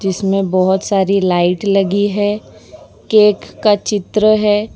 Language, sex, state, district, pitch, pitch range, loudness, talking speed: Hindi, female, Gujarat, Valsad, 200 Hz, 190-210 Hz, -14 LUFS, 125 wpm